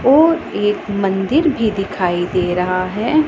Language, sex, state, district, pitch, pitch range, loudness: Hindi, female, Punjab, Pathankot, 205 Hz, 185-275 Hz, -17 LUFS